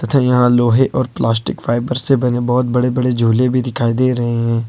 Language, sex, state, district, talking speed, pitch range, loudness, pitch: Hindi, male, Jharkhand, Ranchi, 165 wpm, 120-125 Hz, -15 LUFS, 125 Hz